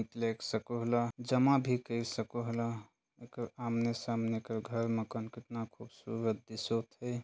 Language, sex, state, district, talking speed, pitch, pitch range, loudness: Chhattisgarhi, male, Chhattisgarh, Jashpur, 125 wpm, 115 Hz, 115-120 Hz, -36 LUFS